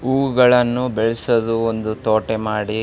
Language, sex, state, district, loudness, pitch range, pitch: Kannada, male, Karnataka, Raichur, -18 LUFS, 110-125 Hz, 115 Hz